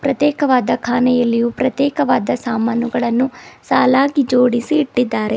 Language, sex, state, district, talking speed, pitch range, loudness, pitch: Kannada, female, Karnataka, Bidar, 80 wpm, 240-270 Hz, -16 LUFS, 250 Hz